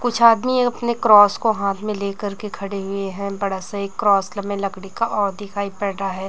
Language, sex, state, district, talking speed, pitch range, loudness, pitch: Hindi, female, Chhattisgarh, Raipur, 230 wpm, 195-215 Hz, -20 LUFS, 200 Hz